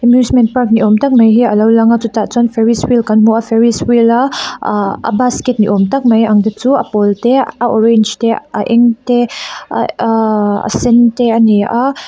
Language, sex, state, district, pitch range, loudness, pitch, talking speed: Mizo, female, Mizoram, Aizawl, 220-240 Hz, -11 LUFS, 230 Hz, 245 wpm